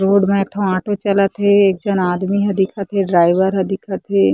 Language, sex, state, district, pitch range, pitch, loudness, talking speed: Chhattisgarhi, female, Chhattisgarh, Korba, 190-200 Hz, 195 Hz, -16 LUFS, 235 wpm